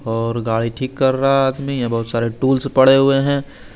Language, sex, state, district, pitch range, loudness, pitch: Hindi, male, Chandigarh, Chandigarh, 115-135 Hz, -17 LUFS, 130 Hz